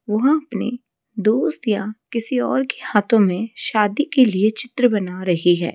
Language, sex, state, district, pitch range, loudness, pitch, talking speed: Hindi, female, Odisha, Malkangiri, 210-250 Hz, -19 LUFS, 220 Hz, 165 wpm